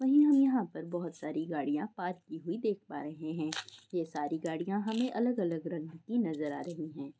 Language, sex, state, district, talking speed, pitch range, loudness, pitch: Hindi, female, Goa, North and South Goa, 210 wpm, 155-215 Hz, -34 LUFS, 165 Hz